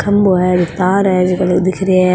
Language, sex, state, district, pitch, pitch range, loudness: Marwari, female, Rajasthan, Nagaur, 185 Hz, 180-190 Hz, -13 LUFS